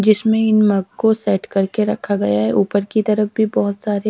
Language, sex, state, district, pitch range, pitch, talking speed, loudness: Hindi, female, Haryana, Charkhi Dadri, 200-215 Hz, 210 Hz, 250 wpm, -17 LUFS